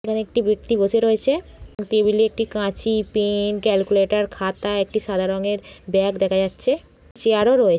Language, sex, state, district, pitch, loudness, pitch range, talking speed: Bengali, female, West Bengal, Jhargram, 210 Hz, -21 LUFS, 200-220 Hz, 155 wpm